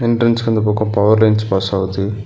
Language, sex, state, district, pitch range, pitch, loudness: Tamil, male, Tamil Nadu, Nilgiris, 100-110 Hz, 105 Hz, -15 LUFS